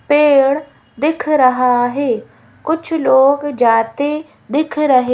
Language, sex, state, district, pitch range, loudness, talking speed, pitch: Hindi, female, Madhya Pradesh, Bhopal, 250-300 Hz, -15 LUFS, 105 wpm, 280 Hz